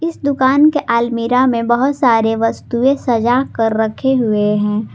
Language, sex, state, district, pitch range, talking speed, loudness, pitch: Hindi, female, Jharkhand, Garhwa, 225-265 Hz, 145 wpm, -15 LUFS, 235 Hz